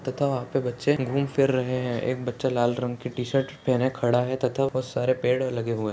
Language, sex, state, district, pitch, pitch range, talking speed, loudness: Hindi, male, Chhattisgarh, Bastar, 130 Hz, 125-135 Hz, 245 wpm, -26 LUFS